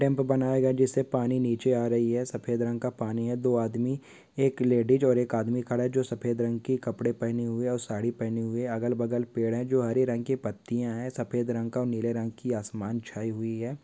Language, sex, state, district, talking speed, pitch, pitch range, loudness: Hindi, male, Uttar Pradesh, Etah, 240 wpm, 120 Hz, 115-125 Hz, -28 LUFS